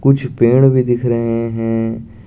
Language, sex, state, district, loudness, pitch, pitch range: Hindi, male, Jharkhand, Garhwa, -15 LUFS, 120 Hz, 115-130 Hz